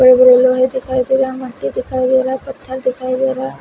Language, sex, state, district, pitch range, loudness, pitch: Hindi, female, Himachal Pradesh, Shimla, 255-260 Hz, -15 LUFS, 260 Hz